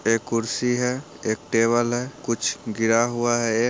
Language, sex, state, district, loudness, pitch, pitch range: Hindi, male, Bihar, Muzaffarpur, -23 LUFS, 120 Hz, 115-125 Hz